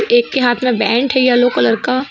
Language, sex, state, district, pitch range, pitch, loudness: Hindi, female, Uttar Pradesh, Shamli, 245-270 Hz, 255 Hz, -14 LUFS